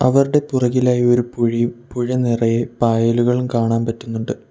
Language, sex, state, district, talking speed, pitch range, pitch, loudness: Malayalam, male, Kerala, Kollam, 120 wpm, 115-125 Hz, 120 Hz, -18 LUFS